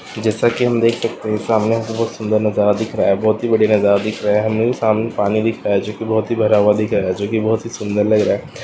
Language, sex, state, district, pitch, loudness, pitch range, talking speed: Hindi, male, Andhra Pradesh, Anantapur, 110 Hz, -17 LUFS, 105-115 Hz, 265 wpm